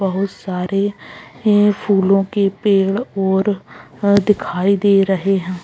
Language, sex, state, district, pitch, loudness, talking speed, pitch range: Magahi, female, Bihar, Gaya, 195 Hz, -17 LUFS, 115 wpm, 190-205 Hz